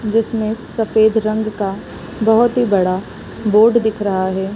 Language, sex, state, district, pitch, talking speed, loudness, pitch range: Hindi, female, Bihar, East Champaran, 215 Hz, 145 wpm, -16 LUFS, 200-225 Hz